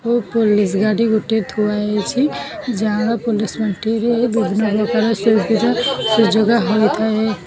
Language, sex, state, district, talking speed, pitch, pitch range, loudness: Odia, female, Odisha, Khordha, 110 wpm, 220 Hz, 215-230 Hz, -17 LUFS